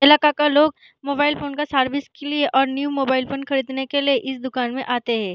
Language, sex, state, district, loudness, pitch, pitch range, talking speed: Hindi, female, Bihar, Araria, -20 LUFS, 275 Hz, 265-290 Hz, 235 wpm